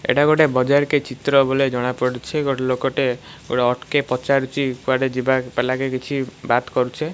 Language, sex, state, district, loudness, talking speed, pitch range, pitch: Odia, male, Odisha, Malkangiri, -20 LUFS, 135 wpm, 125-140 Hz, 130 Hz